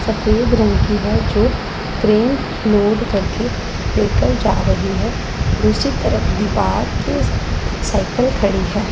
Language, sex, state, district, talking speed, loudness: Hindi, female, Punjab, Pathankot, 135 wpm, -17 LUFS